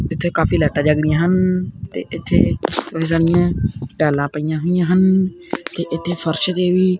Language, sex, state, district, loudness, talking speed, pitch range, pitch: Punjabi, male, Punjab, Kapurthala, -18 LUFS, 145 wpm, 155-180 Hz, 165 Hz